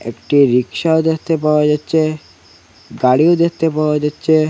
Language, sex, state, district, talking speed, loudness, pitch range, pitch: Bengali, male, Assam, Hailakandi, 120 wpm, -15 LUFS, 125-160 Hz, 155 Hz